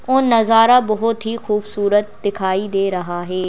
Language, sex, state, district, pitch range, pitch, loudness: Hindi, female, Madhya Pradesh, Bhopal, 195-230 Hz, 210 Hz, -17 LUFS